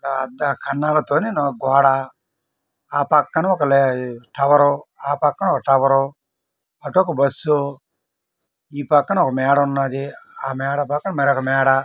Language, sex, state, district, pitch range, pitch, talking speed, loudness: Telugu, male, Andhra Pradesh, Srikakulam, 135-145 Hz, 140 Hz, 130 wpm, -18 LUFS